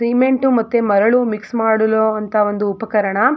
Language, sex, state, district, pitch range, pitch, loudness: Kannada, female, Karnataka, Mysore, 210-235 Hz, 220 Hz, -16 LUFS